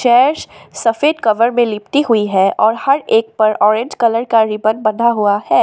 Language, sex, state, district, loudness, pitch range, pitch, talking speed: Hindi, female, Assam, Sonitpur, -14 LUFS, 215-240 Hz, 225 Hz, 190 wpm